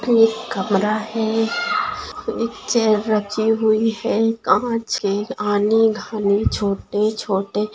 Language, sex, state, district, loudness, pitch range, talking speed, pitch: Hindi, female, Bihar, Sitamarhi, -20 LUFS, 210-225 Hz, 95 wpm, 220 Hz